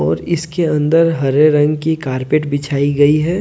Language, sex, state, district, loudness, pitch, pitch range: Hindi, male, Jharkhand, Deoghar, -15 LUFS, 150 Hz, 145-160 Hz